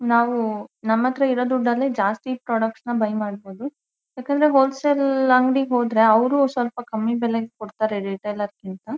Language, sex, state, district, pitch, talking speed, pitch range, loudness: Kannada, female, Karnataka, Shimoga, 240 Hz, 145 wpm, 220-260 Hz, -21 LUFS